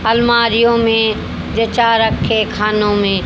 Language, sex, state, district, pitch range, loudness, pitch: Hindi, female, Haryana, Jhajjar, 215-230 Hz, -14 LUFS, 225 Hz